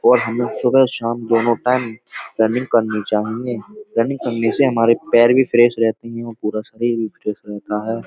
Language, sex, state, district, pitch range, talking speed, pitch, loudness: Hindi, male, Uttar Pradesh, Budaun, 110-125 Hz, 185 wpm, 115 Hz, -18 LUFS